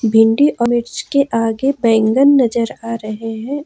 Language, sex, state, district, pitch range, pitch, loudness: Hindi, female, Jharkhand, Ranchi, 225-275 Hz, 235 Hz, -15 LUFS